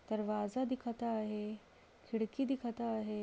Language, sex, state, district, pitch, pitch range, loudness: Marathi, female, Maharashtra, Solapur, 225 Hz, 215-235 Hz, -39 LUFS